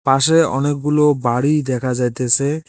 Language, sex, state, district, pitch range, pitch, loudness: Bengali, male, West Bengal, Cooch Behar, 125-150 Hz, 140 Hz, -16 LUFS